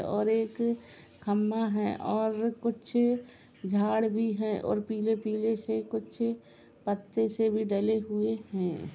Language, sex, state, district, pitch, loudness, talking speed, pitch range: Hindi, female, Uttar Pradesh, Jalaun, 220 Hz, -30 LUFS, 135 wpm, 210-225 Hz